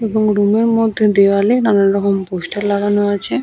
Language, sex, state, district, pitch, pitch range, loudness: Bengali, female, West Bengal, Paschim Medinipur, 205 Hz, 200-215 Hz, -14 LUFS